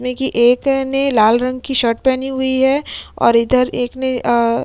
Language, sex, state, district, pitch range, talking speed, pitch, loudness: Hindi, female, Uttar Pradesh, Jyotiba Phule Nagar, 240-265 Hz, 195 wpm, 255 Hz, -16 LUFS